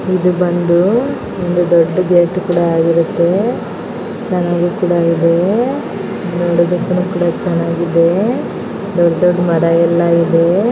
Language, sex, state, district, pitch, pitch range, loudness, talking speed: Kannada, female, Karnataka, Belgaum, 175 Hz, 170-185 Hz, -14 LUFS, 105 wpm